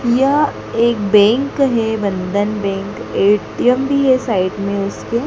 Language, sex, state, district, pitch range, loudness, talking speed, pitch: Hindi, female, Madhya Pradesh, Dhar, 200-255 Hz, -16 LUFS, 135 wpm, 220 Hz